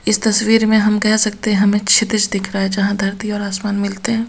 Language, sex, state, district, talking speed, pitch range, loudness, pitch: Hindi, female, Bihar, Katihar, 280 wpm, 200-215 Hz, -16 LUFS, 210 Hz